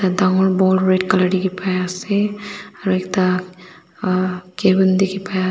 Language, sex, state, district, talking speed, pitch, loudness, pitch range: Nagamese, female, Nagaland, Dimapur, 110 wpm, 185 Hz, -18 LUFS, 185-190 Hz